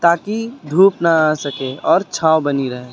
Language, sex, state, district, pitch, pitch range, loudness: Hindi, male, Uttar Pradesh, Lucknow, 160 Hz, 140-175 Hz, -16 LUFS